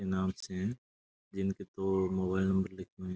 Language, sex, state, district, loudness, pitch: Rajasthani, male, Rajasthan, Churu, -34 LUFS, 95 Hz